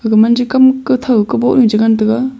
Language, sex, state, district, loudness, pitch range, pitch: Wancho, female, Arunachal Pradesh, Longding, -11 LUFS, 220-260 Hz, 240 Hz